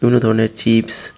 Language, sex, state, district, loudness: Bengali, male, Tripura, West Tripura, -15 LUFS